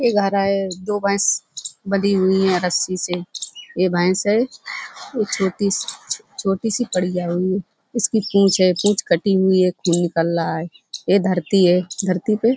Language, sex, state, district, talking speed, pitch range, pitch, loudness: Hindi, female, Uttar Pradesh, Budaun, 170 wpm, 180-205 Hz, 190 Hz, -19 LUFS